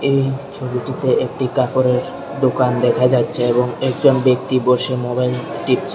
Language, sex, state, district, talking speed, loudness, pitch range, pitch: Bengali, male, Tripura, Unakoti, 130 wpm, -17 LUFS, 125-135 Hz, 130 Hz